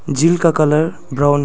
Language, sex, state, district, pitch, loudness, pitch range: Hindi, male, Arunachal Pradesh, Lower Dibang Valley, 150 Hz, -15 LUFS, 145-165 Hz